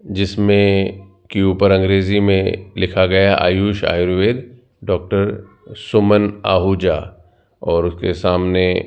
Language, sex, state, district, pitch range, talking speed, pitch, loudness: Hindi, male, Rajasthan, Jaipur, 95-105 Hz, 110 wpm, 95 Hz, -16 LUFS